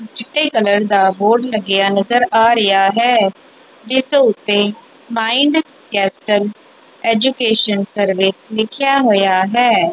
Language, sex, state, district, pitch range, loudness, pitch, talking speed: Punjabi, female, Punjab, Kapurthala, 200-245 Hz, -14 LUFS, 220 Hz, 110 wpm